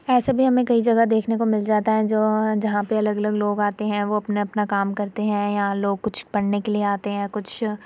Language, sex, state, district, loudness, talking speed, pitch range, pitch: Hindi, female, Uttar Pradesh, Muzaffarnagar, -22 LUFS, 260 wpm, 205-220 Hz, 210 Hz